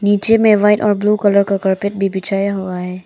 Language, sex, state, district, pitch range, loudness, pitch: Hindi, female, Arunachal Pradesh, Papum Pare, 195-205 Hz, -15 LUFS, 200 Hz